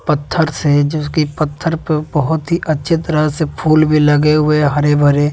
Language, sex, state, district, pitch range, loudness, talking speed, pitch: Hindi, male, Bihar, West Champaran, 150-155 Hz, -14 LUFS, 190 wpm, 150 Hz